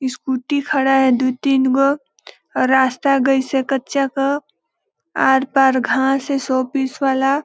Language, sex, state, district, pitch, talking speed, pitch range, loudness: Hindi, female, Chhattisgarh, Balrampur, 270 Hz, 130 wpm, 265-275 Hz, -17 LUFS